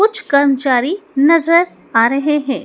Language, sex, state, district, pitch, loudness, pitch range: Hindi, male, Madhya Pradesh, Dhar, 290 Hz, -14 LUFS, 275-340 Hz